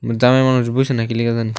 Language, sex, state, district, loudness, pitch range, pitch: Bengali, male, Tripura, West Tripura, -16 LUFS, 115-130 Hz, 120 Hz